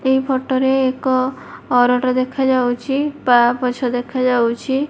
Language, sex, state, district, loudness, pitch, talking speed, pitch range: Odia, female, Odisha, Malkangiri, -17 LUFS, 255 Hz, 85 wpm, 250-265 Hz